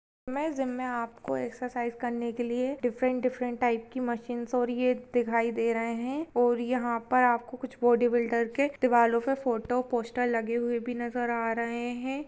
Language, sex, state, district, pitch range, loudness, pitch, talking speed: Hindi, female, Goa, North and South Goa, 235-250 Hz, -29 LUFS, 240 Hz, 185 wpm